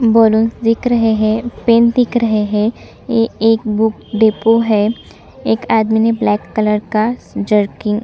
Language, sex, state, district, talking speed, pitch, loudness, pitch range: Hindi, female, Chhattisgarh, Sukma, 155 wpm, 225 Hz, -14 LUFS, 215-230 Hz